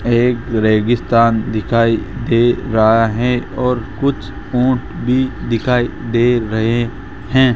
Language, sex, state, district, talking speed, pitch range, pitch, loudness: Hindi, male, Rajasthan, Jaipur, 110 wpm, 110-125 Hz, 120 Hz, -16 LUFS